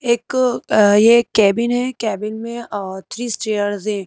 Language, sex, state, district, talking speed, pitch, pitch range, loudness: Hindi, female, Madhya Pradesh, Bhopal, 130 wpm, 220 Hz, 205-235 Hz, -17 LUFS